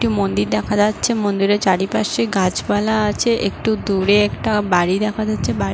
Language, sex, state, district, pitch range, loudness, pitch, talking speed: Bengali, female, West Bengal, Paschim Medinipur, 190-215 Hz, -18 LUFS, 205 Hz, 155 wpm